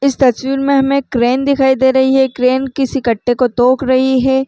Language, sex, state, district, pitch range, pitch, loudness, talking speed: Chhattisgarhi, female, Chhattisgarh, Raigarh, 255-270 Hz, 265 Hz, -13 LUFS, 225 wpm